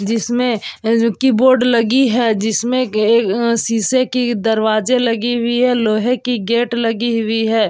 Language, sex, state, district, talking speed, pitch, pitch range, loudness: Hindi, female, Bihar, Vaishali, 185 wpm, 235 Hz, 225-245 Hz, -15 LUFS